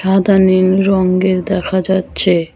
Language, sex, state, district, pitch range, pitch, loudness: Bengali, female, West Bengal, Cooch Behar, 185-190 Hz, 190 Hz, -13 LUFS